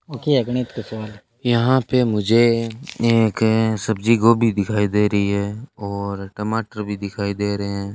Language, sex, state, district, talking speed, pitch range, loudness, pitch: Hindi, male, Rajasthan, Bikaner, 130 wpm, 100-115 Hz, -20 LUFS, 110 Hz